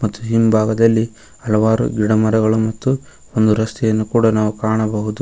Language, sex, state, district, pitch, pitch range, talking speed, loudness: Kannada, male, Karnataka, Koppal, 110 Hz, 110-115 Hz, 125 wpm, -17 LUFS